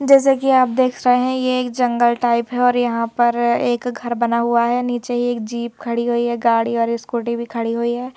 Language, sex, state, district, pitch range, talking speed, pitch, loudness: Hindi, female, Madhya Pradesh, Bhopal, 235-245 Hz, 240 wpm, 240 Hz, -18 LUFS